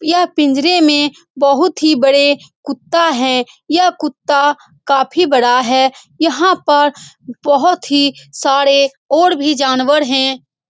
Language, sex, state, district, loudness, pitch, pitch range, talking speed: Hindi, female, Bihar, Saran, -13 LUFS, 285 Hz, 270-320 Hz, 125 wpm